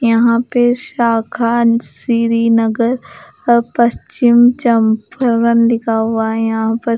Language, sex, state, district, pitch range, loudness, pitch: Hindi, female, Bihar, West Champaran, 230-240 Hz, -14 LUFS, 235 Hz